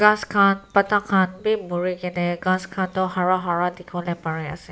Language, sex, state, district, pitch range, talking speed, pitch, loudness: Nagamese, female, Nagaland, Kohima, 175-200 Hz, 215 wpm, 185 Hz, -22 LUFS